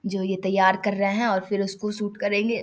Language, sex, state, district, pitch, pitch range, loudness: Maithili, female, Bihar, Samastipur, 200 Hz, 190-210 Hz, -24 LUFS